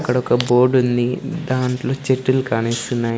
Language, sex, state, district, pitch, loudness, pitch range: Telugu, male, Andhra Pradesh, Sri Satya Sai, 125 Hz, -18 LUFS, 120-130 Hz